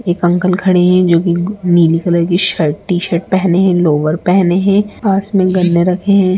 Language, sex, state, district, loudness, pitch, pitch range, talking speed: Hindi, female, Bihar, Samastipur, -12 LUFS, 180 Hz, 175-190 Hz, 195 wpm